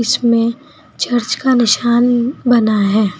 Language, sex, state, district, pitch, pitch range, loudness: Hindi, female, Uttar Pradesh, Saharanpur, 235 Hz, 220-245 Hz, -14 LUFS